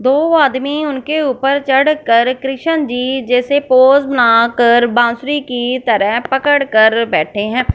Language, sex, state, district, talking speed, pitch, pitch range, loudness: Hindi, female, Punjab, Fazilka, 145 wpm, 260 Hz, 240-280 Hz, -13 LUFS